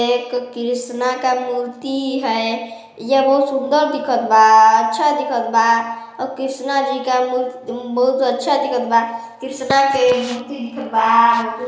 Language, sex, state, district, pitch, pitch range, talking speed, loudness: Hindi, female, Chhattisgarh, Balrampur, 250 Hz, 230-265 Hz, 140 wpm, -17 LUFS